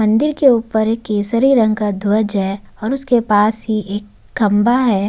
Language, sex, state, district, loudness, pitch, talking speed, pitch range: Hindi, male, Uttarakhand, Tehri Garhwal, -16 LUFS, 220 Hz, 190 wpm, 205-240 Hz